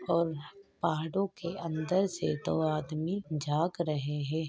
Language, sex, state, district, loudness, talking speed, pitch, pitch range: Hindi, female, Chhattisgarh, Jashpur, -32 LUFS, 145 wpm, 160 Hz, 150-170 Hz